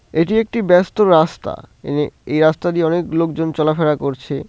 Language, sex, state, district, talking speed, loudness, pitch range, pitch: Bengali, male, West Bengal, Cooch Behar, 160 wpm, -16 LUFS, 155-175 Hz, 160 Hz